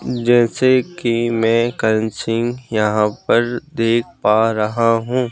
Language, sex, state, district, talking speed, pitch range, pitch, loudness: Hindi, male, Madhya Pradesh, Bhopal, 125 wpm, 110-120 Hz, 115 Hz, -17 LUFS